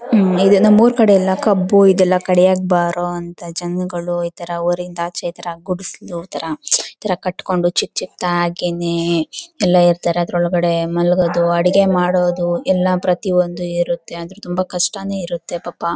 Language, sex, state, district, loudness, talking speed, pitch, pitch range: Kannada, female, Karnataka, Chamarajanagar, -17 LUFS, 145 wpm, 175 Hz, 175-185 Hz